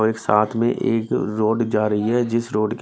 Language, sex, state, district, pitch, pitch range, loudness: Hindi, male, Bihar, Patna, 110 Hz, 105-115 Hz, -20 LUFS